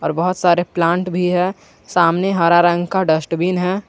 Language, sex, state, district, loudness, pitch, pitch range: Hindi, male, Jharkhand, Garhwa, -16 LUFS, 175 Hz, 170-185 Hz